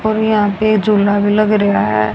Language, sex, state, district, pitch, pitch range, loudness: Hindi, female, Haryana, Rohtak, 210 Hz, 200-215 Hz, -13 LUFS